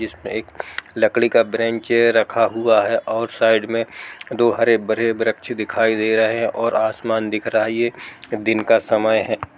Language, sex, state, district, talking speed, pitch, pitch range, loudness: Hindi, male, Bihar, East Champaran, 180 wpm, 115 Hz, 110-115 Hz, -19 LUFS